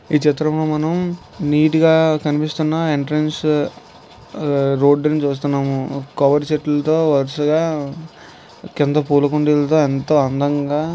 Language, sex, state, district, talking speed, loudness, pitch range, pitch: Telugu, male, Andhra Pradesh, Visakhapatnam, 90 wpm, -17 LUFS, 145-155 Hz, 150 Hz